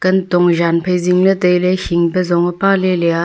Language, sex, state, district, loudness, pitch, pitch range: Wancho, female, Arunachal Pradesh, Longding, -14 LUFS, 180 Hz, 175-185 Hz